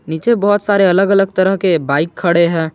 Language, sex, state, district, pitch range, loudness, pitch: Hindi, male, Jharkhand, Garhwa, 165-195 Hz, -13 LUFS, 185 Hz